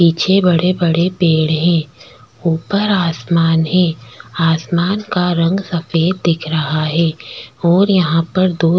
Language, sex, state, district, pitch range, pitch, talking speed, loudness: Hindi, female, Chhattisgarh, Bastar, 160-180 Hz, 170 Hz, 115 wpm, -15 LUFS